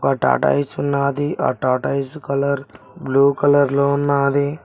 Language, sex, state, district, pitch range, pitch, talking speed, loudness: Telugu, male, Telangana, Mahabubabad, 135-140 Hz, 140 Hz, 130 wpm, -18 LUFS